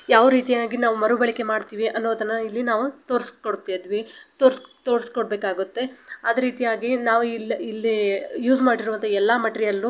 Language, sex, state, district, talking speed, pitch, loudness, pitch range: Kannada, female, Karnataka, Belgaum, 135 wpm, 230 Hz, -22 LUFS, 220-245 Hz